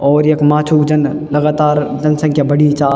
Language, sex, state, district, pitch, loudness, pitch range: Garhwali, male, Uttarakhand, Tehri Garhwal, 150 Hz, -13 LUFS, 145-150 Hz